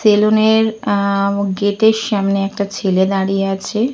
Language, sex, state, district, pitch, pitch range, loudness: Bengali, female, Jharkhand, Jamtara, 200 Hz, 195-215 Hz, -16 LUFS